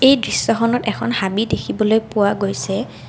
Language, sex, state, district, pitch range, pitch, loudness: Assamese, female, Assam, Kamrup Metropolitan, 195-230 Hz, 215 Hz, -18 LUFS